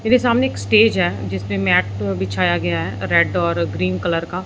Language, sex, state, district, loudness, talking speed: Hindi, male, Punjab, Fazilka, -18 LUFS, 215 wpm